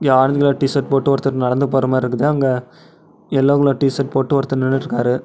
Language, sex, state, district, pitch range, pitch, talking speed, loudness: Tamil, male, Tamil Nadu, Namakkal, 130-140 Hz, 135 Hz, 180 wpm, -17 LUFS